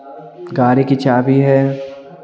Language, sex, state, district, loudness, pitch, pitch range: Hindi, male, Bihar, Patna, -14 LUFS, 135 Hz, 130-140 Hz